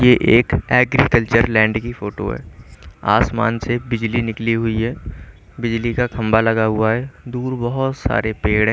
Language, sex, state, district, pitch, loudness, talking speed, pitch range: Hindi, male, Chandigarh, Chandigarh, 115 Hz, -18 LUFS, 160 wpm, 110-120 Hz